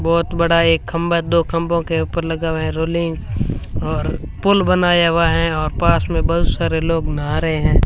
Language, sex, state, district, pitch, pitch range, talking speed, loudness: Hindi, female, Rajasthan, Bikaner, 165 Hz, 145-170 Hz, 200 wpm, -18 LUFS